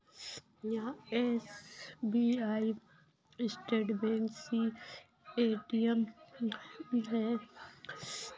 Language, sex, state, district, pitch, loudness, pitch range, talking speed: Hindi, female, Bihar, Saran, 225 Hz, -36 LUFS, 215-235 Hz, 50 wpm